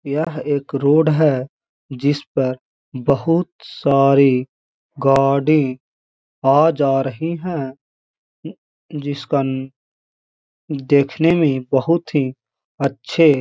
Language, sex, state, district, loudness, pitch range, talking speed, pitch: Hindi, male, Uttar Pradesh, Hamirpur, -18 LUFS, 130-155 Hz, 95 wpm, 140 Hz